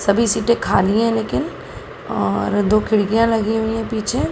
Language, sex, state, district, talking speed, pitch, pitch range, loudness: Hindi, female, Uttar Pradesh, Gorakhpur, 165 wpm, 220 Hz, 215-225 Hz, -18 LUFS